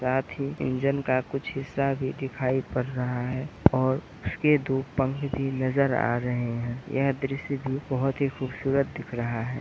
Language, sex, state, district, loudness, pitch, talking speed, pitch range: Hindi, male, Bihar, Begusarai, -27 LUFS, 135 Hz, 180 wpm, 130-140 Hz